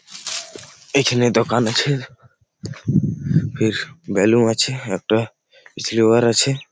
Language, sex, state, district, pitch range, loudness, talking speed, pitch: Bengali, male, West Bengal, Malda, 115-135 Hz, -19 LUFS, 80 wpm, 120 Hz